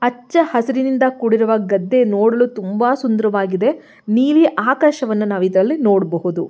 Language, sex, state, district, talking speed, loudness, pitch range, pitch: Kannada, female, Karnataka, Mysore, 110 wpm, -16 LUFS, 200-255 Hz, 230 Hz